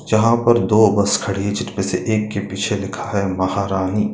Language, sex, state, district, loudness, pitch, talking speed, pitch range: Hindi, male, Bihar, Gaya, -18 LUFS, 100 Hz, 205 wpm, 95-110 Hz